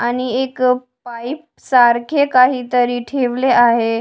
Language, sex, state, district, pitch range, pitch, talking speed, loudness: Marathi, female, Maharashtra, Washim, 240-255 Hz, 250 Hz, 105 wpm, -15 LUFS